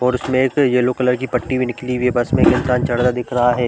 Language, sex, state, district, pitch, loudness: Hindi, male, Chhattisgarh, Balrampur, 125 Hz, -17 LUFS